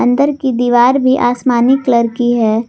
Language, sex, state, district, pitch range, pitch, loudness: Hindi, female, Jharkhand, Garhwa, 240-260 Hz, 245 Hz, -12 LUFS